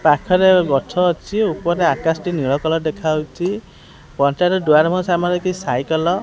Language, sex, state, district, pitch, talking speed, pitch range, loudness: Odia, male, Odisha, Khordha, 170 Hz, 165 wpm, 155-180 Hz, -17 LUFS